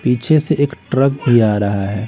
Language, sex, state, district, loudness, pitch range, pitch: Hindi, male, Bihar, Patna, -15 LUFS, 105-140 Hz, 125 Hz